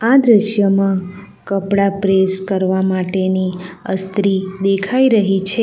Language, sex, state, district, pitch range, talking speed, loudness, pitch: Gujarati, female, Gujarat, Valsad, 190-200 Hz, 105 wpm, -16 LUFS, 195 Hz